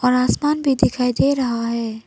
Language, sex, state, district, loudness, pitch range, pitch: Hindi, female, Arunachal Pradesh, Papum Pare, -19 LUFS, 235-270 Hz, 250 Hz